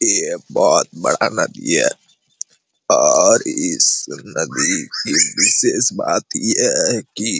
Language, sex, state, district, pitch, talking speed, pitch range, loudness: Hindi, male, Jharkhand, Jamtara, 375 Hz, 120 wpm, 320-500 Hz, -15 LUFS